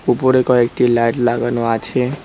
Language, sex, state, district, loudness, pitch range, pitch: Bengali, male, West Bengal, Cooch Behar, -16 LUFS, 120-125 Hz, 120 Hz